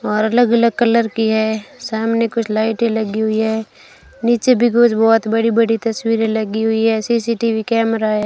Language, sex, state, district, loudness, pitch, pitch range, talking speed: Hindi, female, Rajasthan, Bikaner, -16 LUFS, 225 Hz, 220-230 Hz, 180 wpm